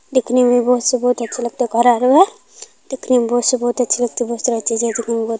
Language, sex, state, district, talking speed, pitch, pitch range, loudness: Maithili, female, Bihar, Kishanganj, 235 wpm, 245 Hz, 235-250 Hz, -16 LUFS